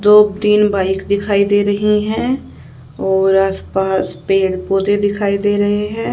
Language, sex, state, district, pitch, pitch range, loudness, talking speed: Hindi, female, Haryana, Rohtak, 200 Hz, 195-210 Hz, -15 LUFS, 155 wpm